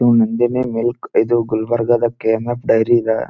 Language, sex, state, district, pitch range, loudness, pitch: Kannada, male, Karnataka, Gulbarga, 110-120 Hz, -17 LUFS, 120 Hz